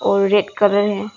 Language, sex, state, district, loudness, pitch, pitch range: Hindi, female, Arunachal Pradesh, Longding, -16 LUFS, 205 Hz, 200-205 Hz